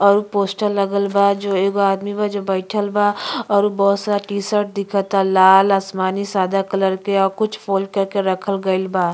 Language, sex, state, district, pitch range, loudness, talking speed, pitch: Bhojpuri, female, Uttar Pradesh, Ghazipur, 195-205 Hz, -18 LUFS, 185 wpm, 200 Hz